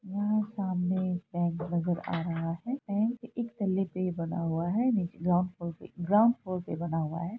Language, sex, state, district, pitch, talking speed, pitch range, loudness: Hindi, female, Bihar, Araria, 185 Hz, 185 wpm, 170-205 Hz, -31 LUFS